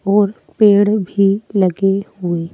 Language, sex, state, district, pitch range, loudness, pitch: Hindi, female, Madhya Pradesh, Bhopal, 190-205 Hz, -15 LUFS, 200 Hz